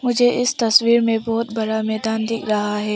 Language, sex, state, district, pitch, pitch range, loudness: Hindi, female, Arunachal Pradesh, Papum Pare, 225 Hz, 220-235 Hz, -19 LUFS